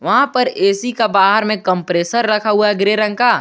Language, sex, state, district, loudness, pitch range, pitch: Hindi, male, Jharkhand, Garhwa, -15 LUFS, 195-230 Hz, 215 Hz